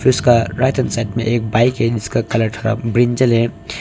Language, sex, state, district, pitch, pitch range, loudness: Hindi, male, Arunachal Pradesh, Longding, 115 Hz, 115-120 Hz, -16 LUFS